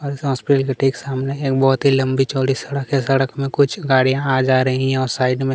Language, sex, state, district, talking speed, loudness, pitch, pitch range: Hindi, male, Chhattisgarh, Kabirdham, 260 wpm, -18 LUFS, 135 Hz, 130-140 Hz